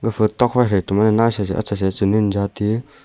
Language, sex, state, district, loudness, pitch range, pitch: Wancho, male, Arunachal Pradesh, Longding, -18 LUFS, 100-115 Hz, 105 Hz